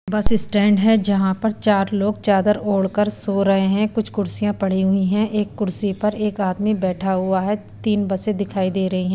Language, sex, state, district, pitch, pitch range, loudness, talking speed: Hindi, female, Punjab, Pathankot, 205 Hz, 190-210 Hz, -18 LUFS, 205 wpm